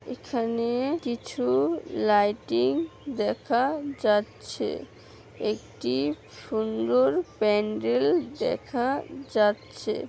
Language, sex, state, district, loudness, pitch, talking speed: Bengali, female, West Bengal, Malda, -27 LUFS, 215 Hz, 60 wpm